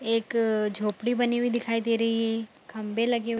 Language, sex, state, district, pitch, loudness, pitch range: Hindi, female, Bihar, Kishanganj, 230 Hz, -27 LUFS, 220-235 Hz